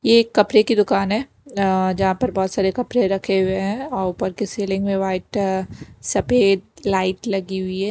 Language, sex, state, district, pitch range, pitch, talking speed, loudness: Hindi, female, Himachal Pradesh, Shimla, 190-210 Hz, 195 Hz, 180 wpm, -20 LUFS